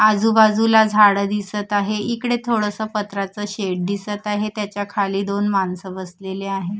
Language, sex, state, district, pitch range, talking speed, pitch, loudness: Marathi, female, Maharashtra, Gondia, 195-215 Hz, 140 wpm, 205 Hz, -20 LUFS